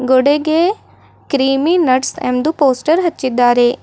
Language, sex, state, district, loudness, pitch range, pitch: Kannada, female, Karnataka, Bidar, -14 LUFS, 255-320 Hz, 270 Hz